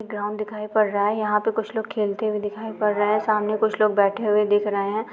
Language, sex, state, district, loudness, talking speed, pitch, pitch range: Hindi, female, Uttar Pradesh, Muzaffarnagar, -23 LUFS, 280 wpm, 210 Hz, 205-215 Hz